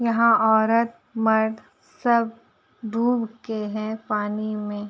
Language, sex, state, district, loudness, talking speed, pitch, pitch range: Hindi, female, Uttar Pradesh, Gorakhpur, -23 LUFS, 110 wpm, 220 Hz, 215-230 Hz